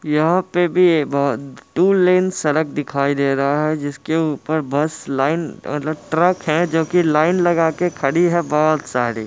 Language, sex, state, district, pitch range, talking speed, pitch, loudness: Hindi, male, Bihar, Muzaffarpur, 145-175 Hz, 180 wpm, 155 Hz, -18 LUFS